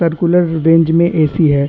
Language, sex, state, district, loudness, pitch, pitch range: Hindi, male, Chhattisgarh, Bastar, -12 LUFS, 165 Hz, 160-170 Hz